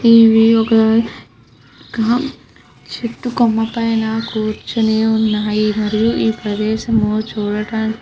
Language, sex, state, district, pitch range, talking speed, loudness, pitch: Telugu, female, Andhra Pradesh, Krishna, 215-230 Hz, 95 wpm, -16 LUFS, 220 Hz